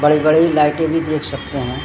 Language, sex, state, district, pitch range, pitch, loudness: Hindi, male, Uttarakhand, Tehri Garhwal, 140-160 Hz, 150 Hz, -16 LUFS